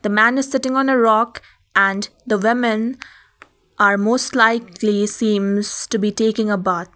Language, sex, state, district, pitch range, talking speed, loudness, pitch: English, female, Sikkim, Gangtok, 205-235 Hz, 165 wpm, -18 LUFS, 220 Hz